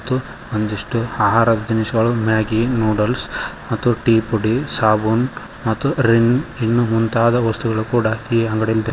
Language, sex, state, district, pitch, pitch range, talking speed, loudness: Kannada, male, Karnataka, Koppal, 115 Hz, 110-120 Hz, 135 wpm, -18 LUFS